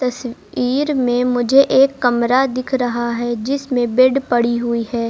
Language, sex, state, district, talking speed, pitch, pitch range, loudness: Hindi, male, Uttar Pradesh, Lucknow, 150 wpm, 250 Hz, 240-265 Hz, -17 LUFS